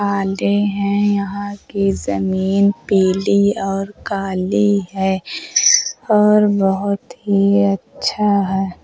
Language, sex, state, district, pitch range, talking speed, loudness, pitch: Hindi, female, Uttar Pradesh, Hamirpur, 190-205 Hz, 90 wpm, -17 LUFS, 200 Hz